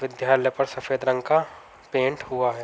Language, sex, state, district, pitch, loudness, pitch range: Hindi, male, Uttar Pradesh, Varanasi, 130 Hz, -24 LUFS, 130-135 Hz